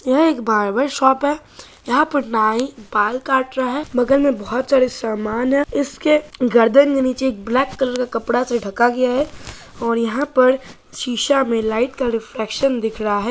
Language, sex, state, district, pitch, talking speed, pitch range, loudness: Hindi, female, Bihar, Saharsa, 255 Hz, 185 wpm, 230-275 Hz, -18 LUFS